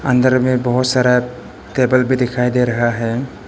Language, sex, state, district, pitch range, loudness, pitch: Hindi, male, Arunachal Pradesh, Papum Pare, 125-130 Hz, -16 LUFS, 125 Hz